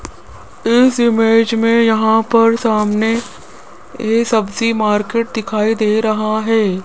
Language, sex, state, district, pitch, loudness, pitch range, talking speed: Hindi, female, Rajasthan, Jaipur, 225 Hz, -14 LUFS, 215-230 Hz, 115 wpm